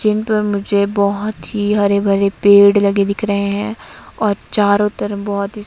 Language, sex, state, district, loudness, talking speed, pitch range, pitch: Hindi, female, Himachal Pradesh, Shimla, -15 LUFS, 170 wpm, 200-210 Hz, 205 Hz